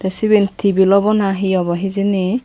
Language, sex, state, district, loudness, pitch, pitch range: Chakma, female, Tripura, Dhalai, -15 LUFS, 195 Hz, 190-205 Hz